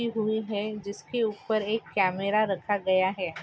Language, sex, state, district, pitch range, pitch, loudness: Hindi, female, Maharashtra, Nagpur, 195-220 Hz, 210 Hz, -28 LUFS